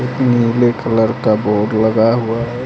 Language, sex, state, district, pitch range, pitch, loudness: Hindi, male, Uttar Pradesh, Lucknow, 110-120 Hz, 115 Hz, -15 LUFS